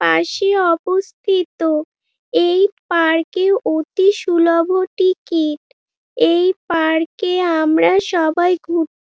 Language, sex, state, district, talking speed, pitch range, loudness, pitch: Bengali, female, West Bengal, Dakshin Dinajpur, 105 wpm, 325-380 Hz, -16 LUFS, 350 Hz